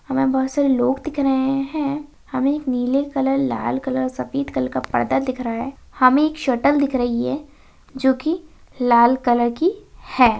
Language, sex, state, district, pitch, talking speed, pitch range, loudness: Hindi, female, Bihar, Saharsa, 265 Hz, 195 wpm, 245-285 Hz, -20 LUFS